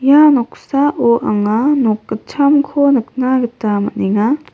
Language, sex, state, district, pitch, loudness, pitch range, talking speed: Garo, female, Meghalaya, West Garo Hills, 260 Hz, -14 LUFS, 225-285 Hz, 105 wpm